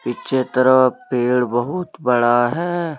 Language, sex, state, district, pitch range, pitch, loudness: Hindi, male, Jharkhand, Deoghar, 120-155 Hz, 130 Hz, -18 LUFS